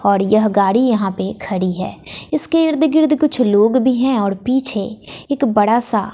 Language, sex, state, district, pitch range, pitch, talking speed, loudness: Hindi, female, Bihar, West Champaran, 205-270 Hz, 230 Hz, 185 wpm, -16 LUFS